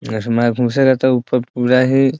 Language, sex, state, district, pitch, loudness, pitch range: Hindi, male, Bihar, Muzaffarpur, 125 Hz, -15 LUFS, 120-130 Hz